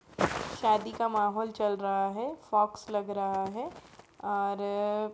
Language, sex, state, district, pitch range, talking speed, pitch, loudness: Hindi, female, Uttar Pradesh, Jyotiba Phule Nagar, 200-215 Hz, 140 wpm, 210 Hz, -31 LUFS